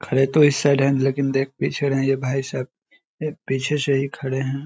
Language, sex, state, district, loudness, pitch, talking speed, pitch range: Hindi, male, Bihar, Saharsa, -21 LUFS, 135 Hz, 230 wpm, 135-145 Hz